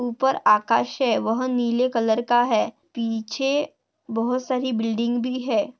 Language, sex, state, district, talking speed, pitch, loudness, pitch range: Hindi, female, Maharashtra, Dhule, 145 wpm, 240 Hz, -23 LUFS, 225-255 Hz